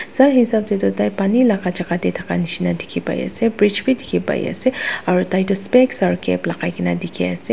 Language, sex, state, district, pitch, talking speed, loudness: Nagamese, female, Nagaland, Dimapur, 190 Hz, 225 wpm, -18 LUFS